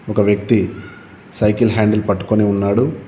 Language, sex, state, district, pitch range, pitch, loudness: Telugu, male, Telangana, Komaram Bheem, 100-110 Hz, 105 Hz, -16 LUFS